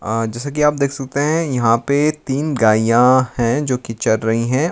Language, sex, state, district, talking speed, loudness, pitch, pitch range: Hindi, male, Uttar Pradesh, Lucknow, 215 wpm, -17 LUFS, 130 Hz, 115-145 Hz